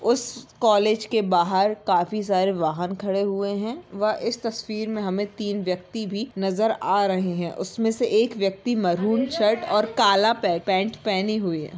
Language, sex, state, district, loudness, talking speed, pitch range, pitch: Hindi, female, Chhattisgarh, Bilaspur, -23 LUFS, 170 wpm, 190-225 Hz, 205 Hz